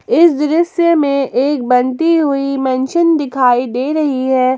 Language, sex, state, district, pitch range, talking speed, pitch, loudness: Hindi, female, Jharkhand, Palamu, 260-320 Hz, 145 wpm, 275 Hz, -14 LUFS